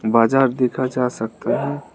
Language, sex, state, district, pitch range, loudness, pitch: Hindi, male, Arunachal Pradesh, Lower Dibang Valley, 115-130 Hz, -20 LUFS, 125 Hz